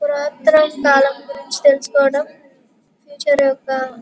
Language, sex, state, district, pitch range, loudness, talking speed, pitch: Telugu, female, Andhra Pradesh, Guntur, 260-290 Hz, -16 LUFS, 105 wpm, 275 Hz